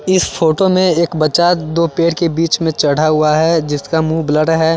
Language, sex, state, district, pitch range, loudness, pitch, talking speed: Hindi, male, Chandigarh, Chandigarh, 155-170 Hz, -14 LUFS, 160 Hz, 215 wpm